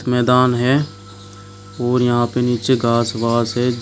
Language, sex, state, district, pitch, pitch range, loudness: Hindi, male, Uttar Pradesh, Shamli, 120 Hz, 115-125 Hz, -17 LUFS